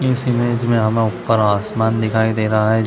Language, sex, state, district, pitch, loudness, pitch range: Hindi, male, Chhattisgarh, Bilaspur, 110 Hz, -17 LUFS, 110-120 Hz